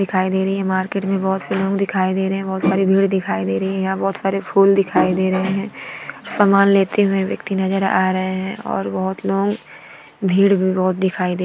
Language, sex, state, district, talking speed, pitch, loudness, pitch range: Hindi, female, Bihar, Araria, 230 wpm, 190 Hz, -18 LUFS, 185-195 Hz